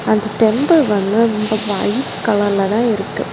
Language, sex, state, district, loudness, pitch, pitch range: Tamil, female, Tamil Nadu, Kanyakumari, -16 LUFS, 215 Hz, 205-230 Hz